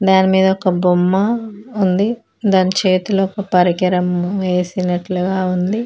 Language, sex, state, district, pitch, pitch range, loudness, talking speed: Telugu, female, Telangana, Mahabubabad, 190 Hz, 180-195 Hz, -16 LUFS, 115 wpm